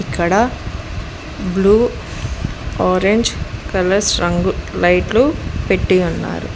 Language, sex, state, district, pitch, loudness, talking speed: Telugu, female, Telangana, Mahabubabad, 185 Hz, -16 LUFS, 75 wpm